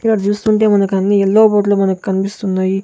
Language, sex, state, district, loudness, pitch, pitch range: Telugu, male, Andhra Pradesh, Sri Satya Sai, -14 LUFS, 200 Hz, 195-215 Hz